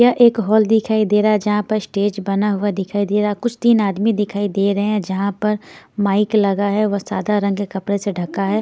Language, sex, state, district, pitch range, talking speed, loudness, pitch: Hindi, female, Punjab, Pathankot, 200-215 Hz, 250 wpm, -18 LUFS, 205 Hz